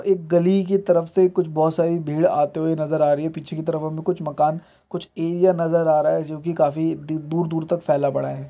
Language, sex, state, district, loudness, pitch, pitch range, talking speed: Hindi, male, Uttar Pradesh, Budaun, -21 LUFS, 165 Hz, 155-175 Hz, 255 wpm